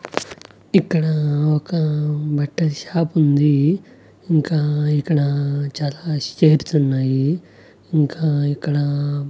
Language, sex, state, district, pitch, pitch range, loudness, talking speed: Telugu, male, Andhra Pradesh, Annamaya, 150 Hz, 145-155 Hz, -19 LUFS, 70 wpm